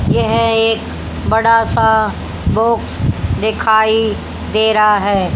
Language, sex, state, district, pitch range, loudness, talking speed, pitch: Hindi, female, Haryana, Charkhi Dadri, 215-225 Hz, -14 LUFS, 90 wpm, 220 Hz